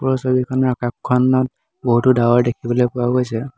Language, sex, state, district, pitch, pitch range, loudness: Assamese, male, Assam, Hailakandi, 125 Hz, 120-130 Hz, -17 LUFS